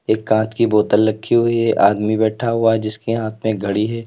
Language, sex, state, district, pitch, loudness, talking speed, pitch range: Hindi, male, Uttar Pradesh, Lalitpur, 110 Hz, -17 LUFS, 235 wpm, 110-115 Hz